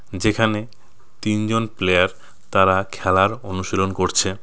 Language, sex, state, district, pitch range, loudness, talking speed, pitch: Bengali, male, West Bengal, Cooch Behar, 95-110 Hz, -20 LUFS, 95 wpm, 100 Hz